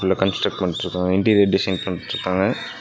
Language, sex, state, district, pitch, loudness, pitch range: Tamil, male, Tamil Nadu, Nilgiris, 95 Hz, -20 LUFS, 90-95 Hz